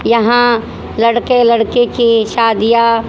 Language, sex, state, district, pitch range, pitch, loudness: Hindi, female, Haryana, Jhajjar, 230-240 Hz, 235 Hz, -12 LUFS